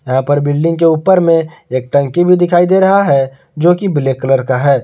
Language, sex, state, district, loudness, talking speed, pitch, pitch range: Hindi, male, Jharkhand, Garhwa, -12 LUFS, 235 wpm, 155 Hz, 135-175 Hz